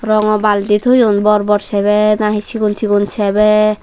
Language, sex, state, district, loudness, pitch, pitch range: Chakma, female, Tripura, Dhalai, -13 LUFS, 210 Hz, 205-215 Hz